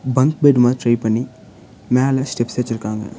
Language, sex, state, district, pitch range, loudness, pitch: Tamil, male, Tamil Nadu, Nilgiris, 115-130 Hz, -17 LUFS, 125 Hz